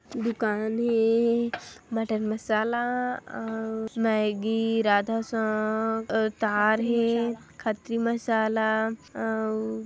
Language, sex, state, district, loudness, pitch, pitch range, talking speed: Hindi, female, Chhattisgarh, Kabirdham, -26 LUFS, 225 Hz, 220-230 Hz, 90 wpm